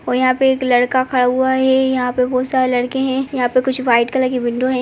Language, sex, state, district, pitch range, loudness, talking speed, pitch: Kumaoni, female, Uttarakhand, Uttarkashi, 250-260 Hz, -16 LUFS, 275 wpm, 255 Hz